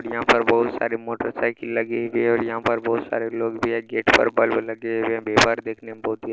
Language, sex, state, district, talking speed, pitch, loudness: Maithili, male, Bihar, Saharsa, 255 wpm, 115 Hz, -22 LUFS